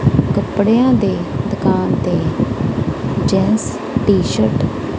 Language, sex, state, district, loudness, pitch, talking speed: Punjabi, female, Punjab, Kapurthala, -16 LUFS, 140 Hz, 95 wpm